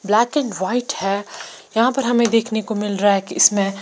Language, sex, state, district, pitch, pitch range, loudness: Hindi, female, Bihar, Patna, 220 Hz, 200-240 Hz, -18 LUFS